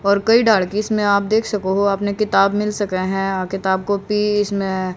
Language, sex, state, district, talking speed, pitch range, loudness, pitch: Hindi, female, Haryana, Jhajjar, 205 wpm, 195-210 Hz, -18 LUFS, 200 Hz